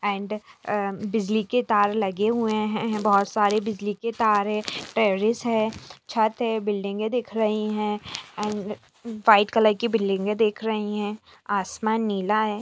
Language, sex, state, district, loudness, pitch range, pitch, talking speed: Hindi, female, Bihar, Saran, -24 LUFS, 205-220 Hz, 215 Hz, 170 wpm